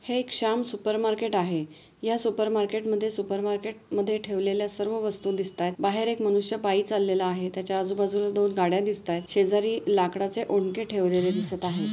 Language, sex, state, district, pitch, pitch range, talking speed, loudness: Marathi, female, Maharashtra, Pune, 205 Hz, 190-215 Hz, 170 wpm, -27 LUFS